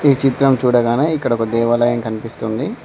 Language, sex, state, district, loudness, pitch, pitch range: Telugu, male, Telangana, Mahabubabad, -16 LUFS, 120 Hz, 115-135 Hz